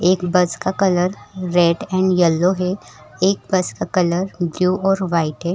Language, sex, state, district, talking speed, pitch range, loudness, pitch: Hindi, female, Chhattisgarh, Rajnandgaon, 175 wpm, 175-185 Hz, -18 LUFS, 180 Hz